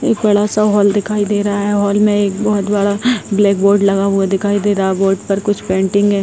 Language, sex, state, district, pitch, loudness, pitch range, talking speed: Hindi, female, Bihar, Jahanabad, 205 Hz, -14 LUFS, 200-205 Hz, 250 wpm